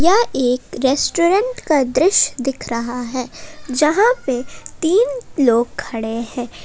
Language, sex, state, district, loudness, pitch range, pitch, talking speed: Hindi, female, Jharkhand, Palamu, -18 LUFS, 245-350 Hz, 270 Hz, 125 wpm